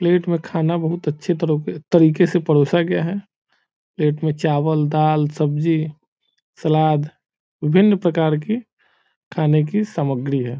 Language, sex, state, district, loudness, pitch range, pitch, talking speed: Hindi, male, Bihar, Saran, -19 LUFS, 150-175 Hz, 160 Hz, 130 wpm